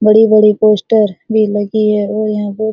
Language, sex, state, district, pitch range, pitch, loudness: Hindi, female, Bihar, Araria, 210-220 Hz, 215 Hz, -12 LUFS